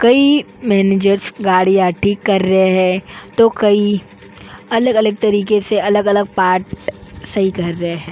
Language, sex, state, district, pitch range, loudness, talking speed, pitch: Hindi, female, Goa, North and South Goa, 185-210 Hz, -14 LUFS, 135 wpm, 200 Hz